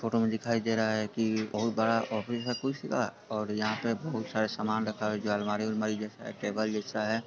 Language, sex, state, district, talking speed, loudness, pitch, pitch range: Hindi, male, Bihar, Sitamarhi, 240 wpm, -31 LUFS, 110 Hz, 105-115 Hz